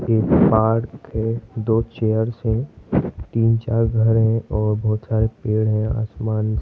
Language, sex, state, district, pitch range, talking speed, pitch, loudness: Hindi, male, Madhya Pradesh, Bhopal, 110-115 Hz, 155 wpm, 110 Hz, -20 LUFS